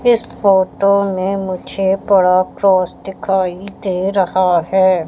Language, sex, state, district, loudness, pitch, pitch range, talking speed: Hindi, female, Madhya Pradesh, Katni, -15 LUFS, 190 Hz, 185-195 Hz, 120 wpm